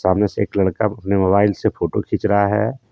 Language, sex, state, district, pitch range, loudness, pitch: Hindi, male, Jharkhand, Deoghar, 100-105 Hz, -18 LUFS, 100 Hz